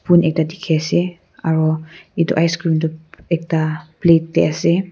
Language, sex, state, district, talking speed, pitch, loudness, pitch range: Nagamese, female, Nagaland, Kohima, 145 wpm, 165 Hz, -18 LUFS, 160-170 Hz